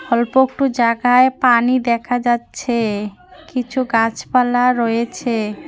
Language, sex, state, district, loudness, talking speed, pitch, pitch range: Bengali, female, West Bengal, Cooch Behar, -17 LUFS, 95 wpm, 240 Hz, 230-255 Hz